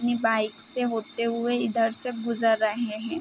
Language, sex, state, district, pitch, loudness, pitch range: Hindi, female, Bihar, East Champaran, 230 Hz, -26 LUFS, 225-240 Hz